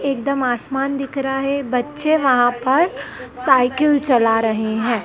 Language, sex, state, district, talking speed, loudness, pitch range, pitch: Hindi, female, Madhya Pradesh, Dhar, 145 wpm, -18 LUFS, 245-280 Hz, 270 Hz